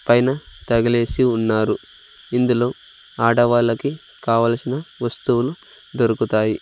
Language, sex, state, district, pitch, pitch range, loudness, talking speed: Telugu, male, Andhra Pradesh, Sri Satya Sai, 120 Hz, 115-125 Hz, -20 LUFS, 75 wpm